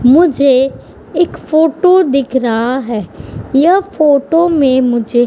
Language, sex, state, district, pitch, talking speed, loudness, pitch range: Hindi, female, Uttar Pradesh, Budaun, 275 Hz, 125 wpm, -12 LUFS, 250-330 Hz